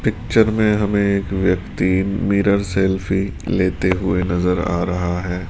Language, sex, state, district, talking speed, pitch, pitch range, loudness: Hindi, female, Rajasthan, Jaipur, 130 wpm, 95 Hz, 90-100 Hz, -19 LUFS